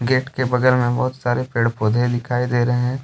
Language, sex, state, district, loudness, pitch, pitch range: Hindi, male, Jharkhand, Deoghar, -19 LUFS, 125 Hz, 120-130 Hz